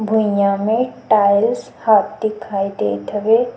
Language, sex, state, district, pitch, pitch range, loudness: Chhattisgarhi, female, Chhattisgarh, Sukma, 210 Hz, 200-220 Hz, -17 LUFS